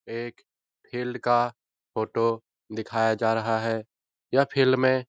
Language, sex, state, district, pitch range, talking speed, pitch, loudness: Hindi, male, Bihar, Jahanabad, 115-125 Hz, 140 wpm, 115 Hz, -26 LUFS